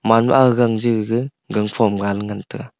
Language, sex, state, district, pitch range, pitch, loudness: Wancho, male, Arunachal Pradesh, Longding, 105-120 Hz, 115 Hz, -18 LUFS